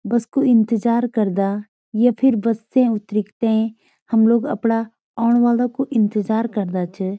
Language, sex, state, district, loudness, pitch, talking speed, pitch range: Garhwali, female, Uttarakhand, Tehri Garhwal, -19 LUFS, 225 Hz, 160 wpm, 210-235 Hz